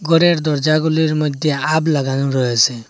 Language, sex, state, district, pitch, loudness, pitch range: Bengali, male, Assam, Hailakandi, 155 Hz, -16 LUFS, 135-160 Hz